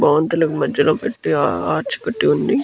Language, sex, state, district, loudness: Telugu, male, Andhra Pradesh, Krishna, -18 LUFS